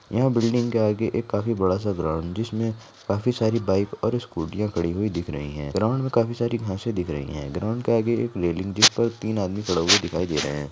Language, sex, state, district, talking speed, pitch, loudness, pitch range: Hindi, female, Rajasthan, Nagaur, 225 wpm, 105 Hz, -24 LUFS, 90-115 Hz